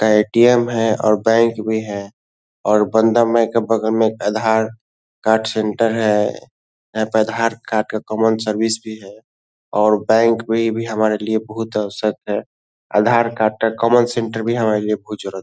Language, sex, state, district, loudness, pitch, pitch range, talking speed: Hindi, male, Bihar, Lakhisarai, -17 LUFS, 110 Hz, 105-115 Hz, 180 wpm